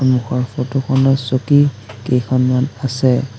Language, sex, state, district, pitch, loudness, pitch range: Assamese, male, Assam, Sonitpur, 130 Hz, -16 LUFS, 125-135 Hz